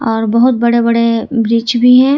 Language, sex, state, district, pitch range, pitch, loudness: Hindi, female, Jharkhand, Ranchi, 230-250 Hz, 235 Hz, -11 LUFS